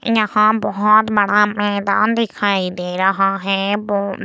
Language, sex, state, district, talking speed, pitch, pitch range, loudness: Hindi, female, Bihar, Vaishali, 140 wpm, 205 Hz, 195-210 Hz, -16 LUFS